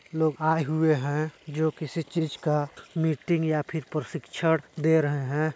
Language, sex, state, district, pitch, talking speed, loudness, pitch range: Hindi, male, Chhattisgarh, Balrampur, 155 Hz, 160 wpm, -27 LUFS, 150-160 Hz